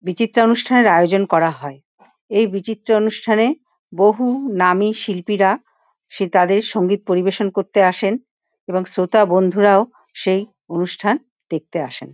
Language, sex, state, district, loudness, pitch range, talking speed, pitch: Bengali, female, West Bengal, Paschim Medinipur, -17 LUFS, 185-220 Hz, 125 wpm, 200 Hz